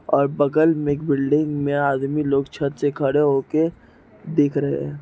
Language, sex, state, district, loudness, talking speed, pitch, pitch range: Hindi, male, Chhattisgarh, Raigarh, -21 LUFS, 205 wpm, 145 Hz, 140-150 Hz